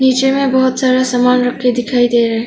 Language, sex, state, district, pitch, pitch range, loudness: Hindi, female, Arunachal Pradesh, Longding, 250 Hz, 245-260 Hz, -13 LUFS